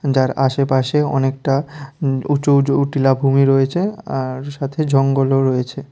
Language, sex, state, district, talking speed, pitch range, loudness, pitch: Bengali, male, Tripura, West Tripura, 140 wpm, 135-140 Hz, -17 LUFS, 135 Hz